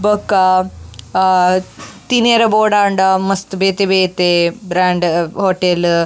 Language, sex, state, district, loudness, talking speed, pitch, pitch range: Tulu, female, Karnataka, Dakshina Kannada, -14 LUFS, 100 wpm, 185 Hz, 175-195 Hz